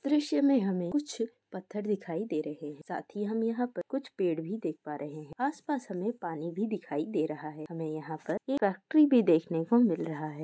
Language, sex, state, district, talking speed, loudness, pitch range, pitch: Hindi, female, Telangana, Nalgonda, 225 wpm, -31 LUFS, 155-240 Hz, 185 Hz